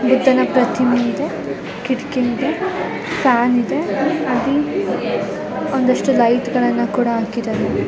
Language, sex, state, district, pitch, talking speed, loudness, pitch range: Kannada, female, Karnataka, Mysore, 250 Hz, 90 wpm, -18 LUFS, 240-265 Hz